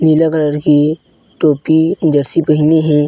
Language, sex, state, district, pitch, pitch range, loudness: Chhattisgarhi, male, Chhattisgarh, Bilaspur, 155 Hz, 150-160 Hz, -13 LUFS